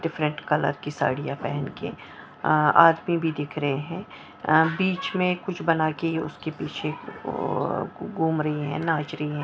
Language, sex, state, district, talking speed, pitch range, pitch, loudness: Hindi, male, Maharashtra, Mumbai Suburban, 170 wpm, 150-165 Hz, 155 Hz, -25 LUFS